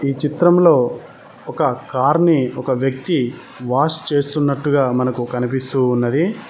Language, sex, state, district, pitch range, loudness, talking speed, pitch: Telugu, male, Telangana, Mahabubabad, 125-155 Hz, -17 LUFS, 110 wpm, 140 Hz